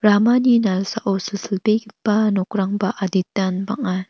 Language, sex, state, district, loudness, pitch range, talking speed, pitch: Garo, female, Meghalaya, North Garo Hills, -20 LUFS, 190-215 Hz, 90 wpm, 200 Hz